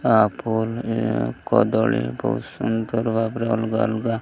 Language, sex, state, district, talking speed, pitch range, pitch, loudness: Odia, male, Odisha, Malkangiri, 140 wpm, 110-115 Hz, 115 Hz, -22 LUFS